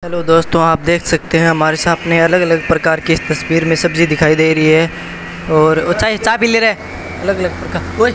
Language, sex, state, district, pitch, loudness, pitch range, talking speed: Hindi, male, Rajasthan, Bikaner, 165 Hz, -13 LUFS, 160-170 Hz, 160 wpm